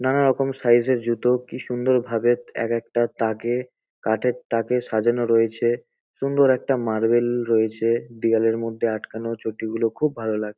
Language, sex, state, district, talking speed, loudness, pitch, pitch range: Bengali, male, West Bengal, North 24 Parganas, 145 wpm, -22 LUFS, 120 Hz, 115-125 Hz